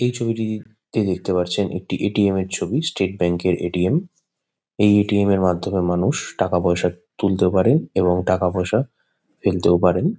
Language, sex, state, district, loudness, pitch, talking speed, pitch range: Bengali, male, West Bengal, Kolkata, -20 LUFS, 95 Hz, 145 wpm, 90-110 Hz